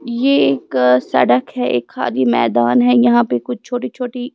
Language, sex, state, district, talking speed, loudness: Hindi, female, Himachal Pradesh, Shimla, 165 wpm, -15 LUFS